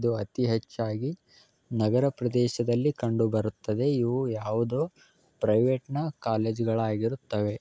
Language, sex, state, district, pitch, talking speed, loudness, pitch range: Kannada, male, Karnataka, Bellary, 120 Hz, 95 wpm, -28 LUFS, 110-130 Hz